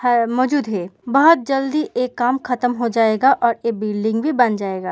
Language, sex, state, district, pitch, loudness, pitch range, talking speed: Hindi, female, Uttar Pradesh, Muzaffarnagar, 245 Hz, -18 LUFS, 225-270 Hz, 195 wpm